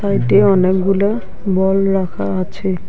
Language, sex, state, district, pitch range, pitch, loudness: Bengali, female, West Bengal, Alipurduar, 185-200 Hz, 190 Hz, -15 LUFS